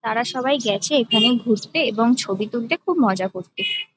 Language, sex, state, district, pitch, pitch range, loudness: Bengali, female, West Bengal, Kolkata, 230 Hz, 205-255 Hz, -20 LUFS